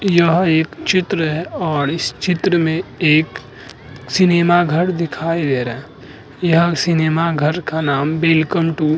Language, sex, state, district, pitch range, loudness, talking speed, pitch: Hindi, male, Uttarakhand, Tehri Garhwal, 155-175 Hz, -16 LUFS, 155 wpm, 165 Hz